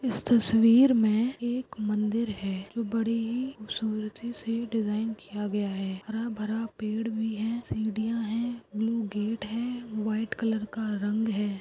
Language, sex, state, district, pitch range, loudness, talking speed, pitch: Hindi, female, Goa, North and South Goa, 215-230 Hz, -29 LUFS, 145 wpm, 220 Hz